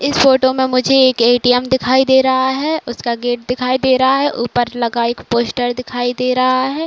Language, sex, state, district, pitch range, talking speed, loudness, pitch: Hindi, female, Uttar Pradesh, Varanasi, 245-260 Hz, 210 wpm, -15 LUFS, 255 Hz